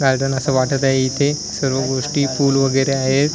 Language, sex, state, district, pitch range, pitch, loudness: Marathi, male, Maharashtra, Washim, 130-140 Hz, 135 Hz, -18 LUFS